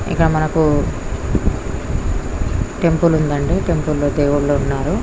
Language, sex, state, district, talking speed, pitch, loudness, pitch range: Telugu, female, Andhra Pradesh, Krishna, 105 wpm, 150 Hz, -18 LUFS, 145-160 Hz